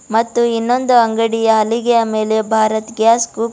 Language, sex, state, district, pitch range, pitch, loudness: Kannada, female, Karnataka, Bidar, 220-235 Hz, 225 Hz, -15 LUFS